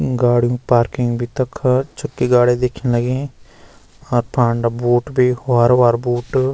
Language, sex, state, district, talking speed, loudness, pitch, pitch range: Garhwali, male, Uttarakhand, Uttarkashi, 130 wpm, -17 LUFS, 120 Hz, 120-125 Hz